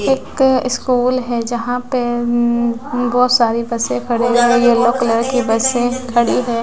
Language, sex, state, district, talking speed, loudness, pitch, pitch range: Hindi, female, Bihar, West Champaran, 145 wpm, -15 LUFS, 240 Hz, 235-250 Hz